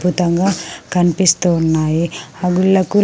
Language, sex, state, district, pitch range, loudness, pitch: Telugu, female, Andhra Pradesh, Sri Satya Sai, 165-185 Hz, -16 LUFS, 175 Hz